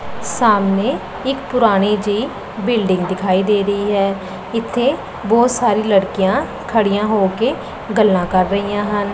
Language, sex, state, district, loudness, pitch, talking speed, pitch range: Punjabi, female, Punjab, Pathankot, -17 LUFS, 205 Hz, 130 wpm, 195-225 Hz